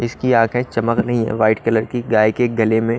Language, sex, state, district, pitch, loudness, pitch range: Hindi, male, Haryana, Rohtak, 115 Hz, -17 LUFS, 110-120 Hz